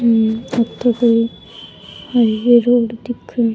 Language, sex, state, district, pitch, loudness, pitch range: Rajasthani, female, Rajasthan, Churu, 235 Hz, -16 LUFS, 230-245 Hz